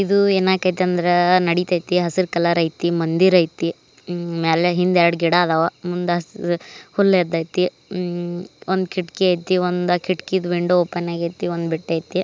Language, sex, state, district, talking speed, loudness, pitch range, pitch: Kannada, female, Karnataka, Mysore, 130 wpm, -19 LUFS, 170-185 Hz, 175 Hz